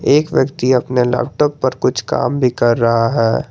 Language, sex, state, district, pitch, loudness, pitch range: Hindi, male, Jharkhand, Garhwa, 125 Hz, -15 LUFS, 120-130 Hz